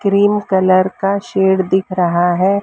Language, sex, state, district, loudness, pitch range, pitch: Hindi, female, Maharashtra, Mumbai Suburban, -14 LUFS, 185-200 Hz, 190 Hz